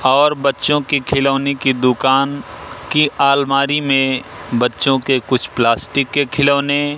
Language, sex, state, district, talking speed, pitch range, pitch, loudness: Hindi, male, Madhya Pradesh, Katni, 130 wpm, 130-145 Hz, 140 Hz, -15 LUFS